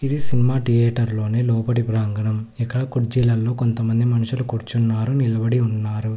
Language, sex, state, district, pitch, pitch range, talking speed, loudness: Telugu, male, Telangana, Hyderabad, 115 Hz, 115-125 Hz, 125 wpm, -20 LUFS